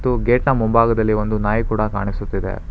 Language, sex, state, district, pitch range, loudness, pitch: Kannada, male, Karnataka, Bangalore, 105-115 Hz, -19 LUFS, 110 Hz